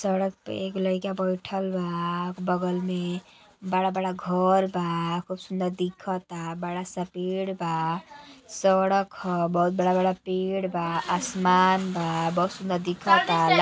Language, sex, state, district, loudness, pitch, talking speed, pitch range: Bhojpuri, female, Uttar Pradesh, Gorakhpur, -26 LUFS, 185 Hz, 135 wpm, 175-190 Hz